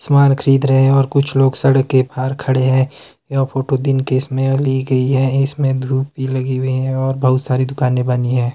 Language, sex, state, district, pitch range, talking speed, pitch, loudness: Hindi, male, Himachal Pradesh, Shimla, 130-135 Hz, 225 wpm, 130 Hz, -16 LUFS